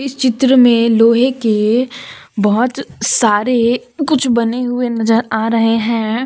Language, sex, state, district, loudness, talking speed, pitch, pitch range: Hindi, female, Jharkhand, Deoghar, -14 LUFS, 135 wpm, 235 Hz, 225-255 Hz